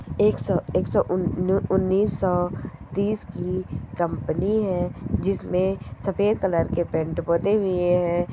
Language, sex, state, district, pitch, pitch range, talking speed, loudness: Hindi, female, Goa, North and South Goa, 180 Hz, 175-195 Hz, 135 wpm, -24 LUFS